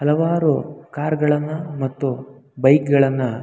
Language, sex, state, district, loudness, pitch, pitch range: Kannada, male, Karnataka, Mysore, -19 LUFS, 145 Hz, 135-150 Hz